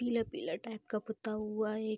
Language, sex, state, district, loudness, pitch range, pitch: Hindi, female, Bihar, Vaishali, -38 LUFS, 215-225 Hz, 220 Hz